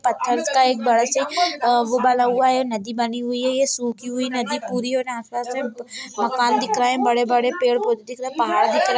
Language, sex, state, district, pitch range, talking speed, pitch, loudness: Hindi, female, Bihar, Lakhisarai, 240-260 Hz, 205 wpm, 250 Hz, -20 LUFS